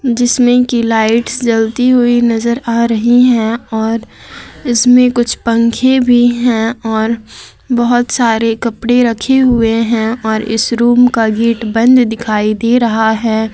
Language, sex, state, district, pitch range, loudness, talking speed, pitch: Hindi, female, Jharkhand, Garhwa, 225-245 Hz, -11 LUFS, 140 wpm, 235 Hz